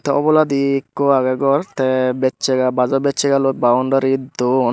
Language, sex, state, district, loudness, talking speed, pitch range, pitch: Chakma, male, Tripura, Dhalai, -17 LUFS, 150 wpm, 130-140 Hz, 135 Hz